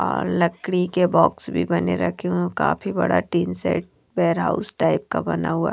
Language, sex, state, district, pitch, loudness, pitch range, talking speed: Hindi, female, Punjab, Kapurthala, 90 Hz, -22 LUFS, 85-95 Hz, 200 wpm